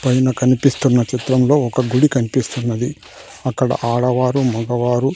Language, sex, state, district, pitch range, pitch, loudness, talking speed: Telugu, male, Andhra Pradesh, Sri Satya Sai, 120-130 Hz, 125 Hz, -17 LUFS, 105 wpm